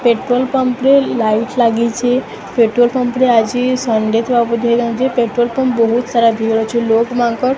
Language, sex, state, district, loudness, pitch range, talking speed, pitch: Odia, female, Odisha, Sambalpur, -14 LUFS, 230-250 Hz, 150 wpm, 240 Hz